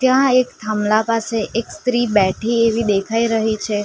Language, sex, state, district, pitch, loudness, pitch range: Gujarati, female, Gujarat, Valsad, 225 Hz, -18 LUFS, 215-235 Hz